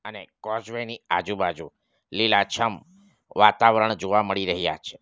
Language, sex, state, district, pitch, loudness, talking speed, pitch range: Gujarati, male, Gujarat, Valsad, 110 Hz, -23 LUFS, 120 wpm, 105-115 Hz